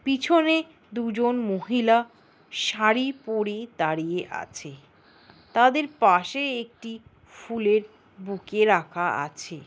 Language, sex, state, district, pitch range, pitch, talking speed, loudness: Bengali, female, West Bengal, North 24 Parganas, 185-240 Hz, 220 Hz, 85 wpm, -24 LUFS